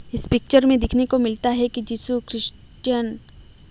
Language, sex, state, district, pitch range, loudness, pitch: Hindi, female, Odisha, Malkangiri, 235-255 Hz, -16 LUFS, 245 Hz